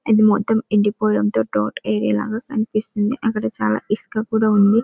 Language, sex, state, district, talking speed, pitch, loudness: Telugu, female, Telangana, Karimnagar, 160 wpm, 215 Hz, -19 LUFS